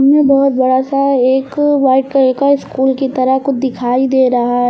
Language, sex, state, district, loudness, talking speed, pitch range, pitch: Hindi, female, Uttar Pradesh, Lucknow, -13 LUFS, 205 wpm, 260-275 Hz, 265 Hz